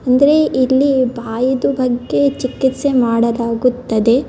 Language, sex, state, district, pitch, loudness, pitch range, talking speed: Kannada, female, Karnataka, Bellary, 255 Hz, -15 LUFS, 240-265 Hz, 100 wpm